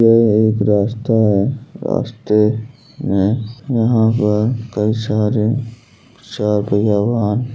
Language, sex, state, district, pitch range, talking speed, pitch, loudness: Bhojpuri, male, Uttar Pradesh, Gorakhpur, 105-115 Hz, 105 wpm, 110 Hz, -16 LUFS